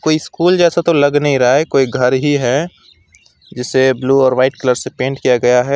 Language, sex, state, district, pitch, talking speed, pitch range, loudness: Hindi, male, West Bengal, Alipurduar, 135 Hz, 230 wpm, 130-145 Hz, -13 LUFS